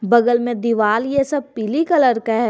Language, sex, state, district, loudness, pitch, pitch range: Hindi, female, Jharkhand, Garhwa, -17 LUFS, 235 Hz, 225-275 Hz